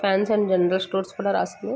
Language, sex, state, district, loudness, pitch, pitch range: Telugu, female, Andhra Pradesh, Guntur, -23 LUFS, 190 Hz, 190-200 Hz